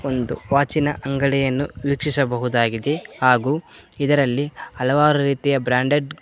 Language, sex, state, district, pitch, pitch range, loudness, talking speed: Kannada, male, Karnataka, Koppal, 140 Hz, 125-145 Hz, -20 LUFS, 105 wpm